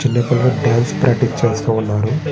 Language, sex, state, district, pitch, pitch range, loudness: Telugu, male, Andhra Pradesh, Srikakulam, 120 Hz, 115-135 Hz, -16 LUFS